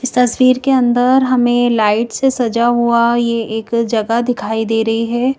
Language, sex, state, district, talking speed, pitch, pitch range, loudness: Hindi, female, Madhya Pradesh, Bhopal, 180 wpm, 240 Hz, 230-250 Hz, -14 LUFS